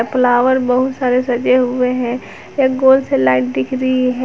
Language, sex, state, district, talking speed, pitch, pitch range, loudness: Hindi, female, Jharkhand, Garhwa, 185 wpm, 255 Hz, 245-260 Hz, -15 LUFS